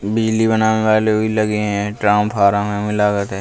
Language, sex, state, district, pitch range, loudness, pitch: Hindi, male, Uttar Pradesh, Jalaun, 105-110 Hz, -16 LUFS, 105 Hz